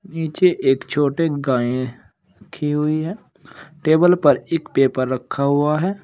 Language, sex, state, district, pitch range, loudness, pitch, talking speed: Hindi, male, Uttar Pradesh, Saharanpur, 135-165 Hz, -19 LUFS, 150 Hz, 140 wpm